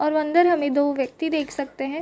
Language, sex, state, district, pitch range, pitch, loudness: Hindi, female, Bihar, Sitamarhi, 285-320 Hz, 295 Hz, -22 LUFS